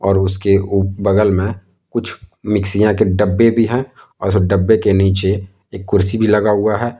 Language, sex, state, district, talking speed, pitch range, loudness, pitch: Hindi, male, Jharkhand, Deoghar, 180 wpm, 95-105 Hz, -15 LUFS, 100 Hz